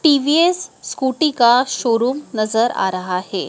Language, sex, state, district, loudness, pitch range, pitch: Hindi, female, Madhya Pradesh, Dhar, -17 LUFS, 220-295 Hz, 250 Hz